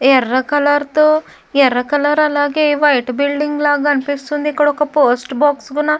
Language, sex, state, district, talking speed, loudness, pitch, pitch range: Telugu, female, Andhra Pradesh, Chittoor, 130 wpm, -15 LUFS, 290 Hz, 275-295 Hz